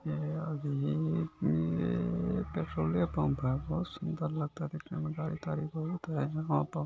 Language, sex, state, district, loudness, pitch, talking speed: Hindi, male, Bihar, Gopalganj, -34 LUFS, 150 Hz, 155 wpm